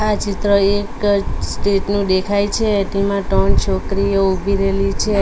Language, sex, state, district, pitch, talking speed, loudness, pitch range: Gujarati, female, Gujarat, Valsad, 200 Hz, 150 wpm, -17 LUFS, 195-205 Hz